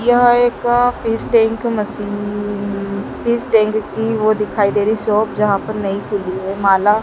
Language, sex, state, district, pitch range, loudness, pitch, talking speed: Hindi, female, Madhya Pradesh, Dhar, 205-225 Hz, -17 LUFS, 215 Hz, 180 wpm